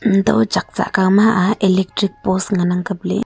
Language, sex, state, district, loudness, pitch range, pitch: Wancho, female, Arunachal Pradesh, Longding, -16 LUFS, 185-205 Hz, 190 Hz